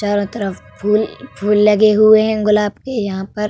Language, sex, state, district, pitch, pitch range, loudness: Hindi, female, Uttar Pradesh, Hamirpur, 210 Hz, 205-215 Hz, -15 LUFS